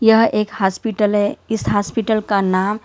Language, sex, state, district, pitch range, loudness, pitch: Hindi, female, Karnataka, Bangalore, 205-225 Hz, -18 LUFS, 210 Hz